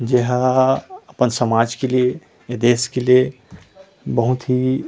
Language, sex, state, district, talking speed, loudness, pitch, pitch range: Chhattisgarhi, male, Chhattisgarh, Rajnandgaon, 135 wpm, -18 LUFS, 125 Hz, 120-130 Hz